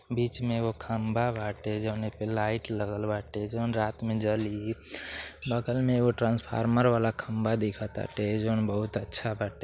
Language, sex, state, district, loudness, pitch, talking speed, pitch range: Bhojpuri, male, Uttar Pradesh, Deoria, -29 LUFS, 110 Hz, 155 wpm, 105-115 Hz